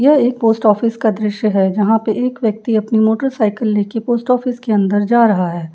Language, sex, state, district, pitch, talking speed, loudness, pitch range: Hindi, female, Uttar Pradesh, Jyotiba Phule Nagar, 220 Hz, 220 wpm, -15 LUFS, 210-240 Hz